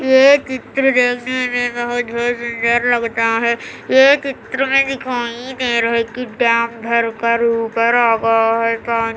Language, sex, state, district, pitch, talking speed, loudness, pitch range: Hindi, female, Andhra Pradesh, Anantapur, 235 Hz, 35 wpm, -16 LUFS, 230-255 Hz